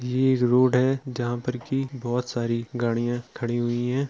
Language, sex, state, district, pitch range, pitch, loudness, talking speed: Hindi, male, Uttar Pradesh, Jalaun, 120-130 Hz, 125 Hz, -25 LUFS, 205 wpm